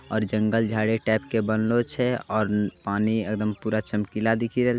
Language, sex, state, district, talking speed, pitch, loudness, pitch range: Angika, male, Bihar, Begusarai, 175 wpm, 110 Hz, -25 LUFS, 105-115 Hz